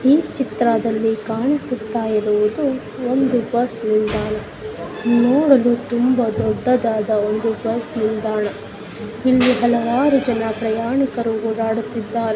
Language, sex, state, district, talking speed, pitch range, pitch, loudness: Kannada, female, Karnataka, Dakshina Kannada, 80 wpm, 220-250 Hz, 230 Hz, -19 LUFS